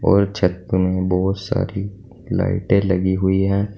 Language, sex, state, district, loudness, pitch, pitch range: Hindi, male, Uttar Pradesh, Saharanpur, -19 LUFS, 95 Hz, 95-100 Hz